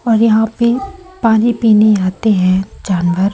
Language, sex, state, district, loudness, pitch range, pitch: Hindi, female, Madhya Pradesh, Umaria, -13 LUFS, 195-235 Hz, 220 Hz